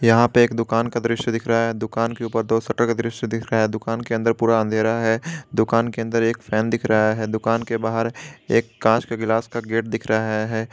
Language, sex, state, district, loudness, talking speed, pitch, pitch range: Hindi, male, Jharkhand, Garhwa, -21 LUFS, 245 wpm, 115 Hz, 110-115 Hz